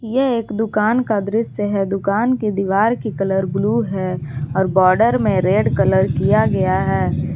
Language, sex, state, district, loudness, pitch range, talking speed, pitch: Hindi, female, Jharkhand, Garhwa, -17 LUFS, 190-225 Hz, 170 wpm, 205 Hz